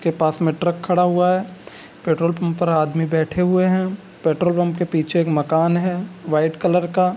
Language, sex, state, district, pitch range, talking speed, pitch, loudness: Hindi, male, Bihar, Gopalganj, 160-180 Hz, 200 wpm, 175 Hz, -19 LUFS